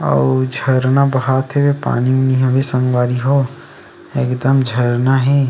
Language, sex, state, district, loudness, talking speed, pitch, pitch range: Chhattisgarhi, male, Chhattisgarh, Bastar, -15 LUFS, 130 wpm, 130 Hz, 125-135 Hz